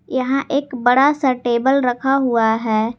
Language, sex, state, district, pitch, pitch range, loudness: Hindi, female, Jharkhand, Garhwa, 255 Hz, 240-275 Hz, -17 LUFS